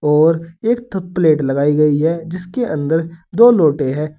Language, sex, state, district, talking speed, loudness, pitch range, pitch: Hindi, male, Uttar Pradesh, Saharanpur, 170 wpm, -16 LUFS, 150-180 Hz, 160 Hz